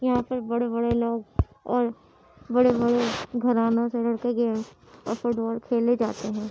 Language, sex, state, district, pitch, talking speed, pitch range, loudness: Hindi, female, Uttar Pradesh, Muzaffarnagar, 235 Hz, 120 wpm, 230-240 Hz, -25 LUFS